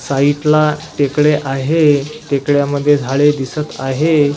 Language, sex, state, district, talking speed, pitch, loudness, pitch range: Marathi, male, Maharashtra, Washim, 95 wpm, 145 Hz, -14 LUFS, 140-150 Hz